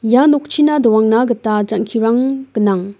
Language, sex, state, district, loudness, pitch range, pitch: Garo, female, Meghalaya, West Garo Hills, -14 LUFS, 215-270 Hz, 230 Hz